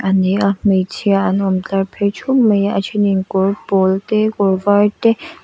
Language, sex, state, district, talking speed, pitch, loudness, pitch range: Mizo, female, Mizoram, Aizawl, 230 wpm, 200 Hz, -16 LUFS, 190-205 Hz